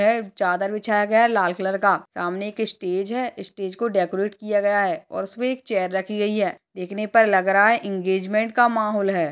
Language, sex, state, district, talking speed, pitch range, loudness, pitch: Hindi, male, Uttar Pradesh, Hamirpur, 210 wpm, 190-220 Hz, -22 LUFS, 205 Hz